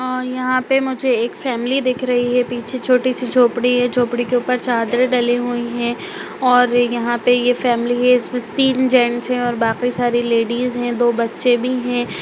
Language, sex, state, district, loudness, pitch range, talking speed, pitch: Hindi, female, Bihar, Darbhanga, -17 LUFS, 240-250 Hz, 185 wpm, 245 Hz